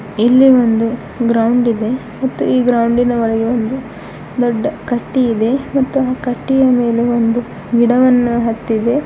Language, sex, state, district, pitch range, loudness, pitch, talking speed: Kannada, female, Karnataka, Bidar, 230-255 Hz, -14 LUFS, 240 Hz, 120 wpm